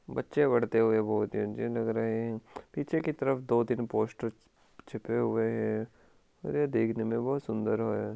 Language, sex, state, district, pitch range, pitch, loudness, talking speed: Hindi, male, Rajasthan, Churu, 110-120 Hz, 115 Hz, -31 LUFS, 175 wpm